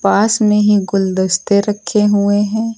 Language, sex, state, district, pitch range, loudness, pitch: Hindi, female, Uttar Pradesh, Lucknow, 195-210 Hz, -14 LUFS, 205 Hz